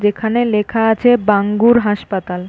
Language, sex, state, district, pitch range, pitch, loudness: Bengali, female, West Bengal, North 24 Parganas, 205-230 Hz, 210 Hz, -14 LUFS